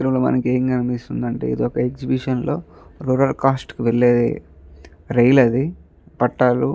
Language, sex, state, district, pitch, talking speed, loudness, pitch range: Telugu, male, Andhra Pradesh, Guntur, 125 Hz, 150 wpm, -19 LUFS, 120-130 Hz